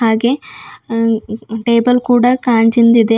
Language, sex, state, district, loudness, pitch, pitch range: Kannada, female, Karnataka, Bidar, -13 LUFS, 230 Hz, 225-245 Hz